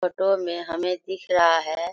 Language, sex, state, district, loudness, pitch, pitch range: Hindi, female, Jharkhand, Sahebganj, -23 LUFS, 175 Hz, 170-180 Hz